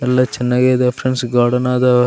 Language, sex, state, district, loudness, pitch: Kannada, male, Karnataka, Raichur, -15 LUFS, 125 Hz